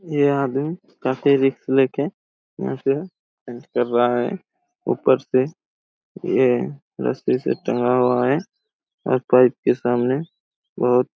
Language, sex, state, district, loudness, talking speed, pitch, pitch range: Hindi, male, Chhattisgarh, Raigarh, -21 LUFS, 135 wpm, 130 Hz, 125-150 Hz